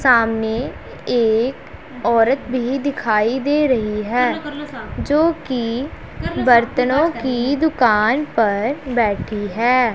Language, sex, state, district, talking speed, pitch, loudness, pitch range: Hindi, female, Punjab, Pathankot, 95 wpm, 250 Hz, -18 LUFS, 225-280 Hz